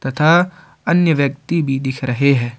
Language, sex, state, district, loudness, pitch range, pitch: Hindi, male, Jharkhand, Ranchi, -17 LUFS, 135-170 Hz, 140 Hz